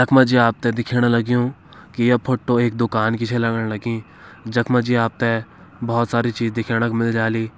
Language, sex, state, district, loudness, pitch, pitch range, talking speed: Kumaoni, male, Uttarakhand, Uttarkashi, -19 LUFS, 115 Hz, 115-120 Hz, 180 wpm